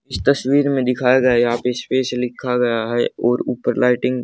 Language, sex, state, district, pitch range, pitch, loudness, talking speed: Hindi, male, Haryana, Charkhi Dadri, 120-130 Hz, 125 Hz, -18 LUFS, 210 wpm